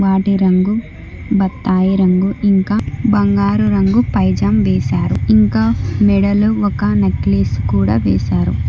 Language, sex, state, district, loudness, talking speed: Telugu, female, Telangana, Hyderabad, -14 LUFS, 105 wpm